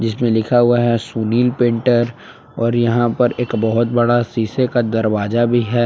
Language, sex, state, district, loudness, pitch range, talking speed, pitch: Hindi, male, Jharkhand, Palamu, -16 LUFS, 115-120 Hz, 165 wpm, 120 Hz